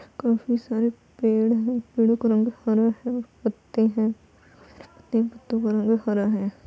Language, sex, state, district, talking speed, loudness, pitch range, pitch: Hindi, female, Bihar, Gopalganj, 155 wpm, -24 LUFS, 220-235 Hz, 225 Hz